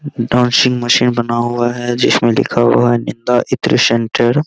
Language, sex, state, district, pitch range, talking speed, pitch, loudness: Hindi, male, Bihar, Araria, 115-125 Hz, 175 wpm, 120 Hz, -13 LUFS